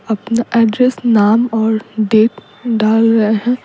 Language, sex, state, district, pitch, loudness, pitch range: Hindi, female, Bihar, Patna, 225 Hz, -13 LUFS, 215-235 Hz